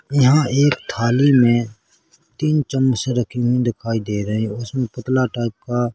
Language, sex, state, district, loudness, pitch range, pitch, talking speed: Hindi, male, Chhattisgarh, Korba, -19 LUFS, 115-130 Hz, 120 Hz, 170 wpm